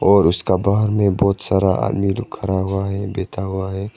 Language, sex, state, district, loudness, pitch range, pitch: Hindi, male, Arunachal Pradesh, Longding, -19 LUFS, 95-100 Hz, 100 Hz